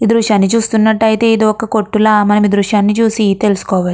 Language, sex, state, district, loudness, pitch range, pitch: Telugu, female, Andhra Pradesh, Krishna, -12 LUFS, 205-220 Hz, 215 Hz